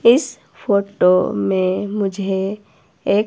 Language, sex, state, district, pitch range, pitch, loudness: Hindi, female, Himachal Pradesh, Shimla, 190-205 Hz, 200 Hz, -18 LUFS